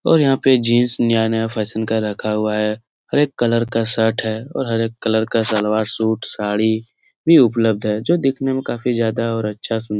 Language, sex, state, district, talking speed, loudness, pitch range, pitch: Hindi, male, Bihar, Lakhisarai, 210 wpm, -18 LUFS, 110-120 Hz, 115 Hz